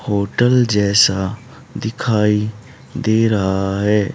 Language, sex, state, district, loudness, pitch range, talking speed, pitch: Hindi, male, Haryana, Charkhi Dadri, -17 LUFS, 100-120 Hz, 85 wpm, 105 Hz